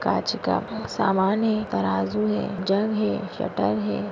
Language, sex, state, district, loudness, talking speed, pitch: Hindi, female, Bihar, Madhepura, -24 LUFS, 145 wpm, 190 Hz